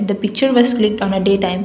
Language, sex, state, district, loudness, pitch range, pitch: English, female, Assam, Kamrup Metropolitan, -15 LUFS, 195-220 Hz, 205 Hz